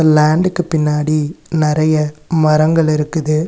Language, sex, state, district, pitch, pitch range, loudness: Tamil, male, Tamil Nadu, Nilgiris, 155 Hz, 150-160 Hz, -15 LUFS